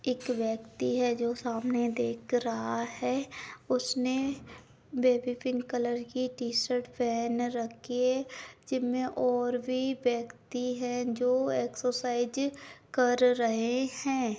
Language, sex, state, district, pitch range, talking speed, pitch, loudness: Hindi, female, Maharashtra, Pune, 235-255 Hz, 115 wpm, 245 Hz, -31 LUFS